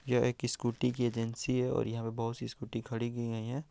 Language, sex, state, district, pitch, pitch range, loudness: Hindi, male, Bihar, Araria, 120 Hz, 115-125 Hz, -34 LUFS